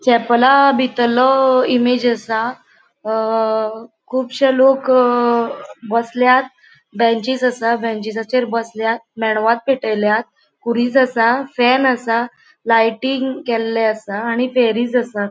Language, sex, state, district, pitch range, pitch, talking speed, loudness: Konkani, female, Goa, North and South Goa, 225-255 Hz, 235 Hz, 90 wpm, -16 LUFS